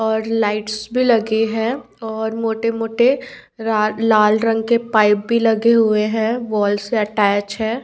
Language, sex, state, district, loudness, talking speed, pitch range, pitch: Hindi, female, Bihar, Patna, -17 LUFS, 145 wpm, 215-230 Hz, 220 Hz